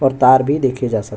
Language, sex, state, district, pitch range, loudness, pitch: Hindi, male, Chhattisgarh, Bastar, 125-135 Hz, -15 LUFS, 130 Hz